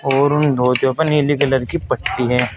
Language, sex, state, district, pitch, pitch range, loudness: Hindi, male, Uttar Pradesh, Saharanpur, 135 Hz, 125-145 Hz, -17 LUFS